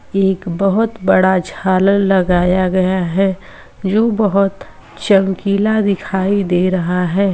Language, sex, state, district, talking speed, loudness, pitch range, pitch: Hindi, female, Uttar Pradesh, Varanasi, 115 wpm, -15 LUFS, 185-200 Hz, 190 Hz